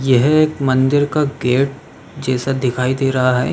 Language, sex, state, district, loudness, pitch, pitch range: Hindi, male, Uttar Pradesh, Jalaun, -16 LUFS, 135 Hz, 130-140 Hz